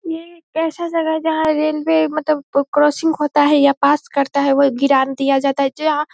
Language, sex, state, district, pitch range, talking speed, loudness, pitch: Hindi, female, Bihar, Saharsa, 280-320 Hz, 215 wpm, -16 LUFS, 295 Hz